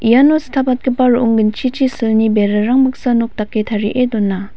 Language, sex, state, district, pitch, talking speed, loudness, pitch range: Garo, female, Meghalaya, West Garo Hills, 235 Hz, 145 wpm, -14 LUFS, 215-255 Hz